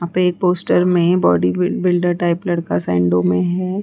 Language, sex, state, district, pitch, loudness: Hindi, female, Uttar Pradesh, Hamirpur, 175 Hz, -17 LUFS